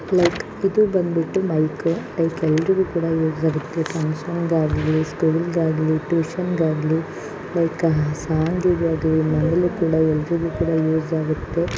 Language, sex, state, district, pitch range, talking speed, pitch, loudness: Kannada, female, Karnataka, Bijapur, 155-170 Hz, 120 wpm, 165 Hz, -21 LUFS